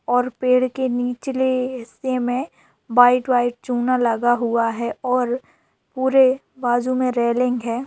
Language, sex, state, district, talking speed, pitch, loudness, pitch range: Hindi, female, Bihar, Sitamarhi, 135 wpm, 250 Hz, -20 LUFS, 240-255 Hz